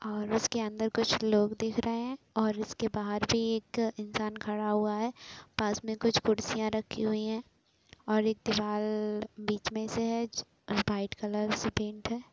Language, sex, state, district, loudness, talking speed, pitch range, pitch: Hindi, female, Uttar Pradesh, Etah, -32 LUFS, 180 wpm, 210-225 Hz, 220 Hz